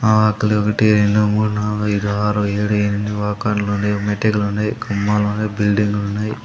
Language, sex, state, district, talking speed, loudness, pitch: Telugu, male, Andhra Pradesh, Sri Satya Sai, 160 wpm, -18 LUFS, 105 Hz